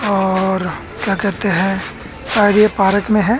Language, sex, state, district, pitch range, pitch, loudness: Hindi, male, Haryana, Jhajjar, 190-210 Hz, 200 Hz, -16 LUFS